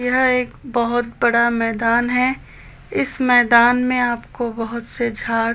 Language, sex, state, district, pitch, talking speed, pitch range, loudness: Hindi, female, Chhattisgarh, Balrampur, 240 Hz, 140 wpm, 235-250 Hz, -18 LUFS